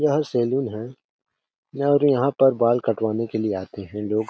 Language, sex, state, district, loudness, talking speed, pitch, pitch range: Hindi, male, Chhattisgarh, Balrampur, -22 LUFS, 180 wpm, 120 Hz, 110-135 Hz